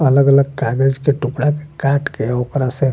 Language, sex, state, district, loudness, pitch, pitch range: Bajjika, male, Bihar, Vaishali, -17 LUFS, 140 Hz, 135-140 Hz